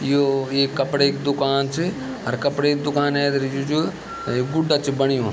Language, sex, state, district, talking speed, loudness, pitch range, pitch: Garhwali, male, Uttarakhand, Tehri Garhwal, 180 wpm, -21 LUFS, 135-145 Hz, 140 Hz